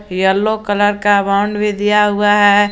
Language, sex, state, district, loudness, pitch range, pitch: Hindi, male, Jharkhand, Garhwa, -13 LUFS, 205-210 Hz, 205 Hz